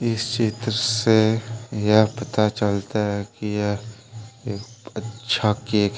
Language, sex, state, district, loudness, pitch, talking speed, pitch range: Hindi, male, Jharkhand, Deoghar, -22 LUFS, 110 Hz, 130 wpm, 105-115 Hz